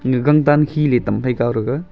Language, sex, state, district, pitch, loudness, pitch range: Wancho, male, Arunachal Pradesh, Longding, 130 Hz, -17 LUFS, 120-150 Hz